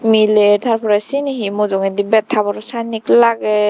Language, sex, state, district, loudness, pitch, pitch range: Chakma, female, Tripura, Dhalai, -15 LUFS, 215 Hz, 205-230 Hz